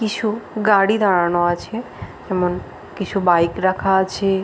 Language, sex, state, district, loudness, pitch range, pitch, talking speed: Bengali, female, West Bengal, Paschim Medinipur, -19 LUFS, 180-210 Hz, 195 Hz, 135 wpm